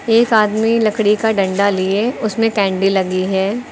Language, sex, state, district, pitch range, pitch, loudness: Hindi, female, Uttar Pradesh, Lucknow, 195-225 Hz, 210 Hz, -15 LUFS